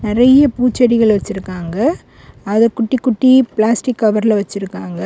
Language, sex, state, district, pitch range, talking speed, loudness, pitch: Tamil, female, Tamil Nadu, Kanyakumari, 205-250 Hz, 105 wpm, -14 LUFS, 225 Hz